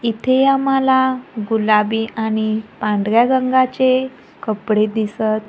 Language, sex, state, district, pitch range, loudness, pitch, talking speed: Marathi, female, Maharashtra, Gondia, 215-260 Hz, -17 LUFS, 225 Hz, 85 wpm